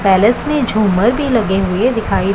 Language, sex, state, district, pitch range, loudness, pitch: Hindi, female, Punjab, Pathankot, 195-245 Hz, -14 LUFS, 220 Hz